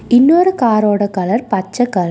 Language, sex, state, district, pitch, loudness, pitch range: Tamil, female, Tamil Nadu, Nilgiris, 225 Hz, -14 LUFS, 195-245 Hz